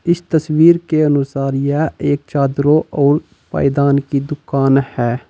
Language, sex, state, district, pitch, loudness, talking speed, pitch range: Hindi, male, Uttar Pradesh, Saharanpur, 140 Hz, -15 LUFS, 135 wpm, 140-155 Hz